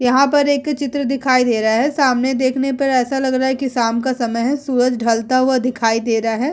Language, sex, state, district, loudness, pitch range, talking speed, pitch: Hindi, female, Bihar, Vaishali, -17 LUFS, 235-270 Hz, 255 wpm, 255 Hz